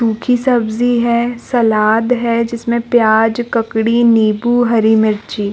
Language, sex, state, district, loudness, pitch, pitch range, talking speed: Hindi, female, Chhattisgarh, Balrampur, -13 LUFS, 230 Hz, 220-240 Hz, 130 wpm